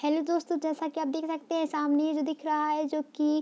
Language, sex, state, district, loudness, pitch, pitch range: Hindi, female, Bihar, Darbhanga, -29 LUFS, 310 Hz, 300-320 Hz